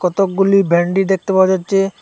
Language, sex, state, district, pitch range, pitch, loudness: Bengali, male, Assam, Hailakandi, 180-195 Hz, 190 Hz, -14 LUFS